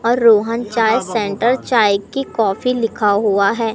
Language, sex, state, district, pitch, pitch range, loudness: Hindi, male, Madhya Pradesh, Katni, 225 Hz, 205-235 Hz, -16 LUFS